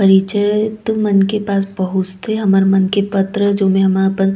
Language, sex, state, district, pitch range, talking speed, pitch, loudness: Chhattisgarhi, female, Chhattisgarh, Raigarh, 195-205 Hz, 195 wpm, 195 Hz, -15 LUFS